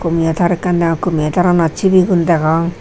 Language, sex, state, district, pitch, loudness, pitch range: Chakma, female, Tripura, Unakoti, 170 Hz, -14 LUFS, 165-180 Hz